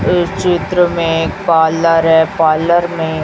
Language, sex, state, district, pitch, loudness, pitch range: Hindi, female, Chhattisgarh, Raipur, 165 Hz, -13 LUFS, 160-175 Hz